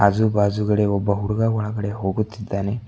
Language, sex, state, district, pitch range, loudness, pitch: Kannada, male, Karnataka, Bidar, 100-110 Hz, -21 LUFS, 105 Hz